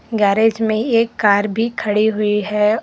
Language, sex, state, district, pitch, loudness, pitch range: Hindi, female, Karnataka, Koppal, 215 Hz, -16 LUFS, 210-225 Hz